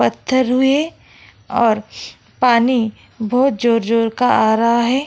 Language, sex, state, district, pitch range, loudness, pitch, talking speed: Hindi, female, Goa, North and South Goa, 225-255 Hz, -16 LUFS, 235 Hz, 120 wpm